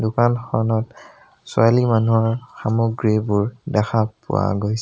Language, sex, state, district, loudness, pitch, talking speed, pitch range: Assamese, male, Assam, Sonitpur, -20 LUFS, 110 Hz, 100 wpm, 110-115 Hz